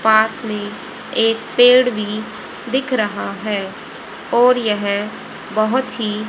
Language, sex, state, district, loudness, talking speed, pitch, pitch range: Hindi, female, Haryana, Rohtak, -17 LUFS, 115 wpm, 220 Hz, 210-245 Hz